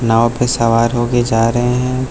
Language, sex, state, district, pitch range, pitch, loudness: Hindi, male, Uttar Pradesh, Lucknow, 115-125 Hz, 120 Hz, -14 LUFS